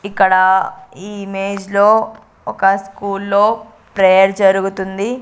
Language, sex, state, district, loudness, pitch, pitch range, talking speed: Telugu, female, Andhra Pradesh, Sri Satya Sai, -14 LUFS, 195 Hz, 190-200 Hz, 90 wpm